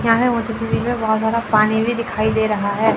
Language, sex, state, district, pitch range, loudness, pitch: Hindi, female, Chandigarh, Chandigarh, 220-230 Hz, -18 LUFS, 220 Hz